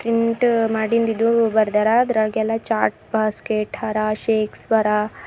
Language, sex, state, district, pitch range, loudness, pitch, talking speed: Kannada, female, Karnataka, Bidar, 215-230 Hz, -19 LUFS, 220 Hz, 115 wpm